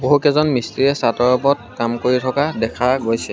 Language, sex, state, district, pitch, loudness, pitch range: Assamese, male, Assam, Sonitpur, 125 Hz, -17 LUFS, 115-140 Hz